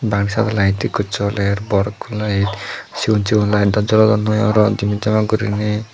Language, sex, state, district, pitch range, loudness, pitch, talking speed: Chakma, male, Tripura, Dhalai, 100-110 Hz, -17 LUFS, 105 Hz, 190 wpm